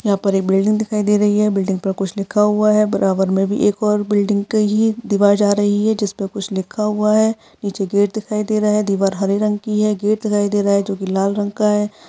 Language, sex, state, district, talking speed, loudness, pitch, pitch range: Hindi, female, Chhattisgarh, Bilaspur, 270 wpm, -17 LUFS, 205 Hz, 200-210 Hz